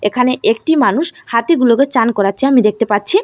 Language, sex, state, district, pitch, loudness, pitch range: Bengali, female, Assam, Hailakandi, 245 Hz, -13 LUFS, 215-275 Hz